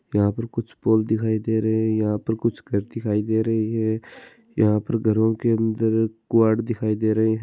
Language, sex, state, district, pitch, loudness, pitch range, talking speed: Marwari, male, Rajasthan, Churu, 110 Hz, -22 LUFS, 110-115 Hz, 210 wpm